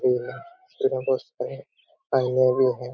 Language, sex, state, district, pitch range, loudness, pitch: Hindi, male, Chhattisgarh, Korba, 125-130 Hz, -24 LUFS, 130 Hz